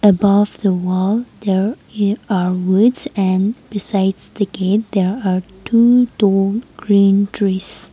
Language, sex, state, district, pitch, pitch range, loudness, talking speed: English, female, Nagaland, Kohima, 200 Hz, 190-215 Hz, -16 LUFS, 130 wpm